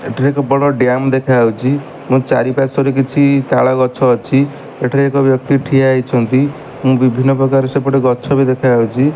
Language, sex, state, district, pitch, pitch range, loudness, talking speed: Odia, male, Odisha, Malkangiri, 135 Hz, 130-140 Hz, -13 LUFS, 140 wpm